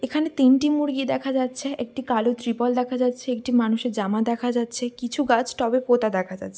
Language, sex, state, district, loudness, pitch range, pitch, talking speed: Bengali, female, West Bengal, Dakshin Dinajpur, -23 LUFS, 235-260 Hz, 245 Hz, 200 wpm